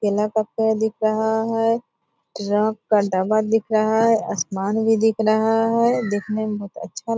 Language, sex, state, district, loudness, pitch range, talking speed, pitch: Hindi, female, Bihar, Purnia, -20 LUFS, 210-225 Hz, 175 wpm, 220 Hz